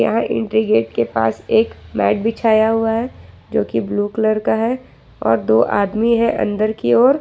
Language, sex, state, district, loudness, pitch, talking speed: Hindi, female, Jharkhand, Ranchi, -17 LUFS, 215 Hz, 185 wpm